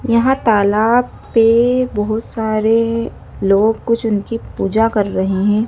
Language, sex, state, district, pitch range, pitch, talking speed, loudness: Hindi, female, Madhya Pradesh, Dhar, 210-230 Hz, 225 Hz, 125 wpm, -15 LUFS